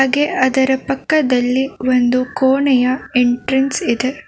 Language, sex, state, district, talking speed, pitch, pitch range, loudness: Kannada, female, Karnataka, Bangalore, 100 wpm, 265 Hz, 255-270 Hz, -16 LUFS